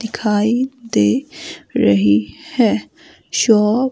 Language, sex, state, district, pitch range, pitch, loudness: Hindi, female, Himachal Pradesh, Shimla, 210-265 Hz, 230 Hz, -16 LUFS